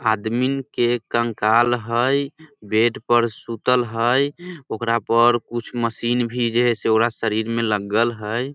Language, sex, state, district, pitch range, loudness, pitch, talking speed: Maithili, male, Bihar, Samastipur, 115-125 Hz, -20 LUFS, 120 Hz, 140 wpm